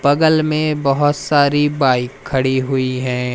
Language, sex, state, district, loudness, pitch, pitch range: Hindi, male, Madhya Pradesh, Umaria, -16 LUFS, 140 Hz, 130-145 Hz